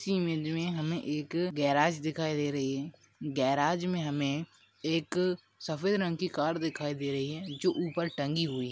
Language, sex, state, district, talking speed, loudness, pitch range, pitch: Hindi, male, Chhattisgarh, Sarguja, 185 wpm, -32 LUFS, 145-170 Hz, 155 Hz